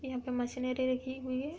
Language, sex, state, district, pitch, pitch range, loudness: Hindi, female, Uttar Pradesh, Budaun, 255 Hz, 255-260 Hz, -35 LUFS